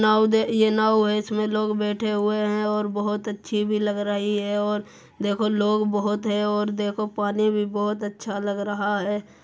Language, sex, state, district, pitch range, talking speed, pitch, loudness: Hindi, female, Uttar Pradesh, Muzaffarnagar, 205-215 Hz, 205 wpm, 210 Hz, -24 LUFS